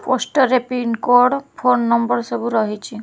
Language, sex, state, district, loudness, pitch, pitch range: Odia, female, Odisha, Khordha, -17 LUFS, 245 Hz, 235-255 Hz